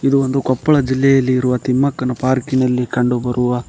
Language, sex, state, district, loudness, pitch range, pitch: Kannada, male, Karnataka, Koppal, -16 LUFS, 125-135 Hz, 130 Hz